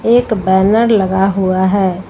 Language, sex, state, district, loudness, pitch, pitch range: Hindi, female, Uttar Pradesh, Lucknow, -13 LUFS, 195 Hz, 190-220 Hz